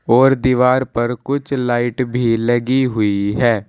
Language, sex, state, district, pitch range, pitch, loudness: Hindi, male, Uttar Pradesh, Saharanpur, 115-130 Hz, 120 Hz, -16 LUFS